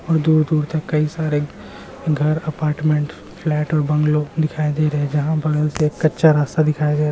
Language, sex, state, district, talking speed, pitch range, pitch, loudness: Hindi, male, Bihar, Muzaffarpur, 195 wpm, 150-155 Hz, 150 Hz, -19 LUFS